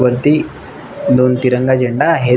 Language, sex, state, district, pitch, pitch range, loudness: Marathi, male, Maharashtra, Nagpur, 125 Hz, 125-130 Hz, -14 LUFS